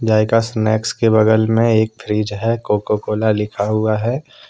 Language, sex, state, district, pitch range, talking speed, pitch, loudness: Hindi, male, Jharkhand, Deoghar, 105-115 Hz, 175 wpm, 110 Hz, -17 LUFS